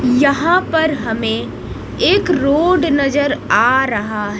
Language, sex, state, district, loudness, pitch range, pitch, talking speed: Hindi, female, Odisha, Nuapada, -15 LUFS, 240-320 Hz, 280 Hz, 110 wpm